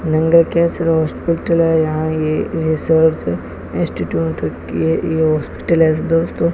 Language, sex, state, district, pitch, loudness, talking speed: Hindi, male, Rajasthan, Bikaner, 160 Hz, -16 LUFS, 110 wpm